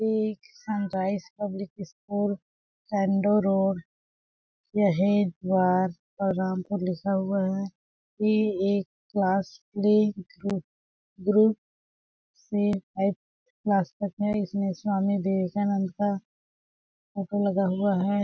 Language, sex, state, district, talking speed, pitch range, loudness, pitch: Hindi, female, Chhattisgarh, Balrampur, 90 wpm, 190-205 Hz, -27 LUFS, 200 Hz